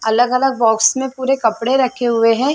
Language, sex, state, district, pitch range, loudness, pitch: Hindi, female, Chhattisgarh, Sarguja, 230-265 Hz, -15 LUFS, 250 Hz